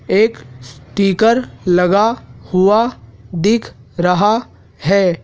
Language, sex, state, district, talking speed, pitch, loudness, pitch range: Hindi, male, Madhya Pradesh, Dhar, 80 wpm, 190 Hz, -15 LUFS, 165-215 Hz